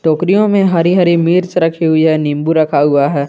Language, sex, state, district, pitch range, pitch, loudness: Hindi, male, Jharkhand, Garhwa, 155-180 Hz, 165 Hz, -12 LUFS